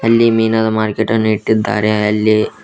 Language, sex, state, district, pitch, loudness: Kannada, male, Karnataka, Koppal, 110 Hz, -14 LUFS